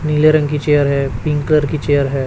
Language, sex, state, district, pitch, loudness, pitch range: Hindi, male, Chhattisgarh, Raipur, 145 Hz, -15 LUFS, 140-150 Hz